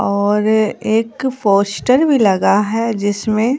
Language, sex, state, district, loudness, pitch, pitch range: Hindi, female, Bihar, Katihar, -15 LUFS, 220 Hz, 205-230 Hz